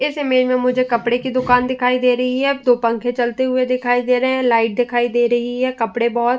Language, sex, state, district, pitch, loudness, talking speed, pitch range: Hindi, female, Uttar Pradesh, Jyotiba Phule Nagar, 250 Hz, -17 LUFS, 255 wpm, 240-255 Hz